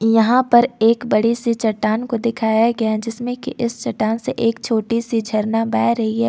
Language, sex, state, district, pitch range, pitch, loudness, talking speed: Hindi, female, Jharkhand, Ranchi, 220-235 Hz, 230 Hz, -18 LUFS, 200 wpm